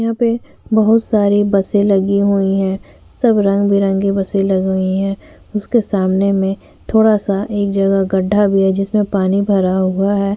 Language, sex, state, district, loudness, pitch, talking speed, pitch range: Hindi, female, Uttar Pradesh, Jyotiba Phule Nagar, -15 LUFS, 200 Hz, 175 wpm, 195-205 Hz